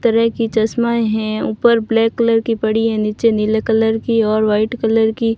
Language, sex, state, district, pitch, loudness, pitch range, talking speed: Hindi, female, Rajasthan, Barmer, 225 Hz, -16 LUFS, 220-230 Hz, 225 wpm